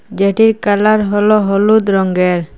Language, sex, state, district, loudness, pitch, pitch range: Bengali, female, Assam, Hailakandi, -12 LUFS, 205 Hz, 195-215 Hz